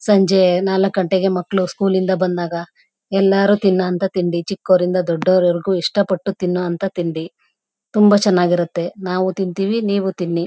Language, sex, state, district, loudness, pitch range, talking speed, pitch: Kannada, female, Karnataka, Chamarajanagar, -17 LUFS, 180-195 Hz, 135 wpm, 185 Hz